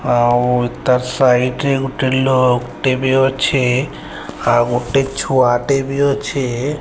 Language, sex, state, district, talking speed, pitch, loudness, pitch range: Odia, male, Odisha, Sambalpur, 125 wpm, 130 Hz, -16 LUFS, 125-135 Hz